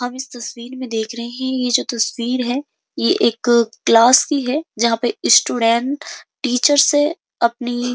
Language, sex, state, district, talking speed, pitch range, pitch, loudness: Hindi, female, Uttar Pradesh, Jyotiba Phule Nagar, 175 wpm, 235-270 Hz, 245 Hz, -17 LUFS